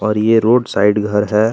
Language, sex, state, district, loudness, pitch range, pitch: Hindi, male, Chhattisgarh, Kabirdham, -14 LUFS, 105-115 Hz, 105 Hz